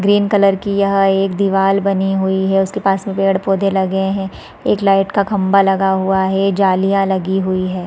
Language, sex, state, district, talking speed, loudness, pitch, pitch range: Hindi, female, Chhattisgarh, Raigarh, 215 wpm, -15 LUFS, 195 Hz, 190-195 Hz